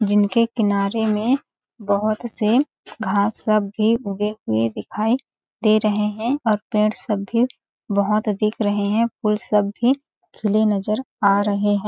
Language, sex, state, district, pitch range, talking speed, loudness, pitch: Hindi, female, Chhattisgarh, Balrampur, 205-225 Hz, 150 wpm, -21 LUFS, 215 Hz